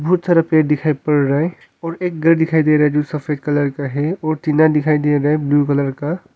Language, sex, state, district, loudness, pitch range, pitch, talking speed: Hindi, male, Arunachal Pradesh, Longding, -16 LUFS, 145-160 Hz, 150 Hz, 265 wpm